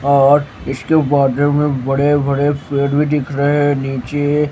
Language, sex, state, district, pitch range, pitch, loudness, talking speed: Hindi, male, Haryana, Jhajjar, 140-145 Hz, 145 Hz, -15 LUFS, 160 wpm